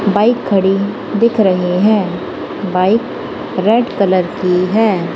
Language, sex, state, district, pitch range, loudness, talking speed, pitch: Hindi, female, Punjab, Kapurthala, 185-215 Hz, -14 LUFS, 115 wpm, 195 Hz